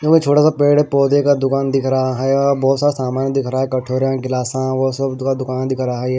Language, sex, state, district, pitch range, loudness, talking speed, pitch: Hindi, male, Maharashtra, Washim, 130-140 Hz, -16 LUFS, 245 wpm, 135 Hz